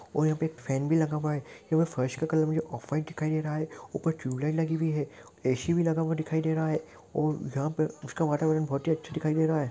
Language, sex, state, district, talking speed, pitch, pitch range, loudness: Hindi, male, Rajasthan, Churu, 285 wpm, 155 Hz, 150-160 Hz, -29 LUFS